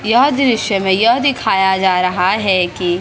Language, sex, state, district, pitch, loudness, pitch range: Hindi, female, Maharashtra, Mumbai Suburban, 195 Hz, -14 LUFS, 185-235 Hz